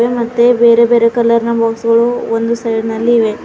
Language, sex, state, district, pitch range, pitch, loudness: Kannada, female, Karnataka, Bidar, 230-235 Hz, 235 Hz, -12 LUFS